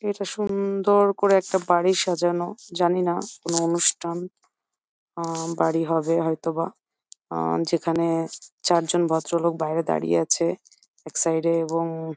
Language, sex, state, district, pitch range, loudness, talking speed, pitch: Bengali, female, West Bengal, Jhargram, 165-180 Hz, -23 LUFS, 125 wpm, 170 Hz